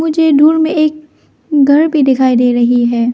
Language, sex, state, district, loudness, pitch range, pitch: Hindi, female, Arunachal Pradesh, Lower Dibang Valley, -11 LUFS, 245-315 Hz, 290 Hz